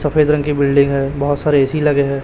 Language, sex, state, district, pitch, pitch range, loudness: Hindi, male, Chhattisgarh, Raipur, 145 Hz, 140-150 Hz, -15 LUFS